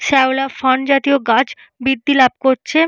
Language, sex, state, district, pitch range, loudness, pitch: Bengali, female, Jharkhand, Jamtara, 260-280 Hz, -15 LUFS, 270 Hz